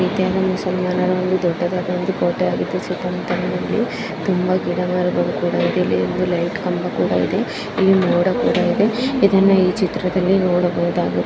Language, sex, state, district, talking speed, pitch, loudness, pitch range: Kannada, female, Karnataka, Dharwad, 85 wpm, 185 Hz, -19 LUFS, 180-190 Hz